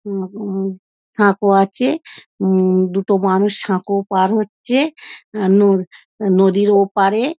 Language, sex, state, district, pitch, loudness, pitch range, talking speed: Bengali, female, West Bengal, Dakshin Dinajpur, 200 Hz, -16 LUFS, 190-210 Hz, 120 wpm